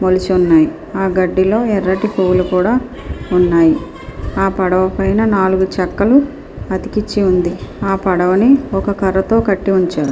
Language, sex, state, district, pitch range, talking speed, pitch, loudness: Telugu, female, Andhra Pradesh, Srikakulam, 185-200 Hz, 130 wpm, 190 Hz, -14 LUFS